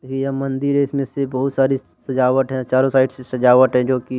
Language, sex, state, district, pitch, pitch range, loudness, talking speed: Hindi, male, Jharkhand, Deoghar, 130 Hz, 130-135 Hz, -18 LUFS, 230 wpm